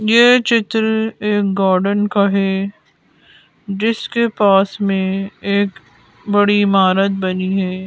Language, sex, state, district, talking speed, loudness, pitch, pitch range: Hindi, female, Madhya Pradesh, Bhopal, 105 wpm, -16 LUFS, 200 Hz, 195-215 Hz